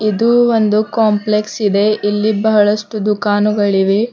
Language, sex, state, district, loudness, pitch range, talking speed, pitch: Kannada, female, Karnataka, Bidar, -14 LUFS, 205-215 Hz, 100 wpm, 210 Hz